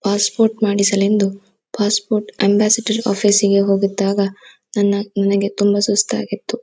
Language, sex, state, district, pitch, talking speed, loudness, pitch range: Kannada, female, Karnataka, Dakshina Kannada, 205 Hz, 125 wpm, -17 LUFS, 200-210 Hz